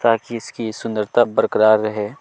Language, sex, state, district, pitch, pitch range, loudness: Hindi, male, Chhattisgarh, Kabirdham, 110 Hz, 105-115 Hz, -18 LUFS